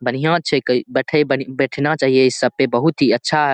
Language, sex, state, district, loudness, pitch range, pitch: Maithili, male, Bihar, Saharsa, -17 LUFS, 130-150 Hz, 135 Hz